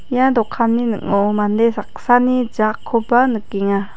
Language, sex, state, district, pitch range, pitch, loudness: Garo, female, Meghalaya, West Garo Hills, 210-245 Hz, 230 Hz, -17 LUFS